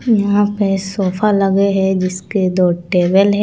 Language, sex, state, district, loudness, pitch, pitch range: Hindi, female, Chandigarh, Chandigarh, -15 LUFS, 195 Hz, 185-205 Hz